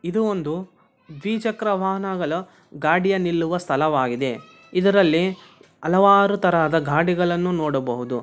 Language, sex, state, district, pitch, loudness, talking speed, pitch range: Kannada, male, Karnataka, Bellary, 175 Hz, -21 LUFS, 95 wpm, 155-190 Hz